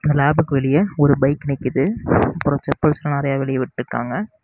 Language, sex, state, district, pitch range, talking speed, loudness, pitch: Tamil, male, Tamil Nadu, Namakkal, 135-150 Hz, 150 wpm, -19 LUFS, 140 Hz